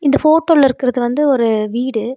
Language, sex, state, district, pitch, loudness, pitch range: Tamil, female, Tamil Nadu, Nilgiris, 255 Hz, -14 LUFS, 240-290 Hz